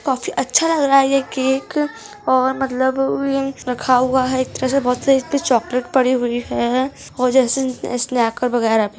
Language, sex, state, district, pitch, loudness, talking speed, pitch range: Hindi, female, Uttar Pradesh, Gorakhpur, 260 Hz, -18 LUFS, 195 wpm, 250-275 Hz